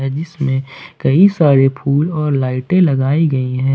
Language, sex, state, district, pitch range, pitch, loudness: Hindi, male, Jharkhand, Ranchi, 135-155 Hz, 140 Hz, -15 LUFS